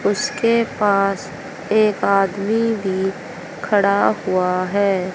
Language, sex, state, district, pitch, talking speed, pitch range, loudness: Hindi, female, Haryana, Jhajjar, 200 Hz, 95 wpm, 190-215 Hz, -18 LUFS